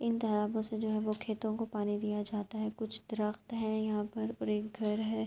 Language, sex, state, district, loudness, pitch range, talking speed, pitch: Urdu, female, Andhra Pradesh, Anantapur, -35 LUFS, 210-220 Hz, 240 wpm, 215 Hz